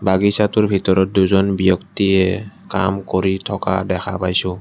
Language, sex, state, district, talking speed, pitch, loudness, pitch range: Assamese, male, Assam, Kamrup Metropolitan, 115 wpm, 95 Hz, -17 LUFS, 95-100 Hz